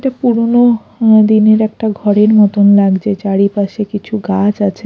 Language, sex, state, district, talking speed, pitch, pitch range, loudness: Bengali, female, Odisha, Khordha, 135 wpm, 210 Hz, 200-220 Hz, -11 LUFS